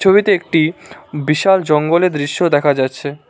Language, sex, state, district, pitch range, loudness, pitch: Bengali, male, West Bengal, Cooch Behar, 145-185 Hz, -15 LUFS, 155 Hz